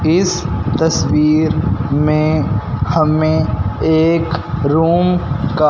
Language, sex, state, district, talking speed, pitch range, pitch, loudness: Hindi, male, Punjab, Fazilka, 75 wpm, 140-160 Hz, 155 Hz, -15 LUFS